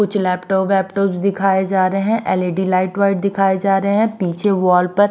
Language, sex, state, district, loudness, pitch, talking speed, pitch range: Hindi, female, Maharashtra, Mumbai Suburban, -17 LUFS, 195 Hz, 200 wpm, 185-200 Hz